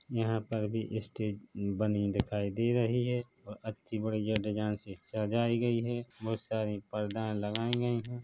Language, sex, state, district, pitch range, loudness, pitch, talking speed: Hindi, male, Chhattisgarh, Bilaspur, 105-120 Hz, -34 LUFS, 110 Hz, 165 wpm